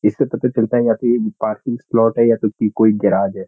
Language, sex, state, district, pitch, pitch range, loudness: Hindi, male, Uttarakhand, Uttarkashi, 115 Hz, 105-120 Hz, -17 LUFS